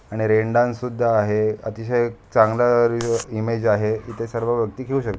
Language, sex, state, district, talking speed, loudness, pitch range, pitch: Marathi, male, Maharashtra, Aurangabad, 185 wpm, -21 LUFS, 110-120 Hz, 115 Hz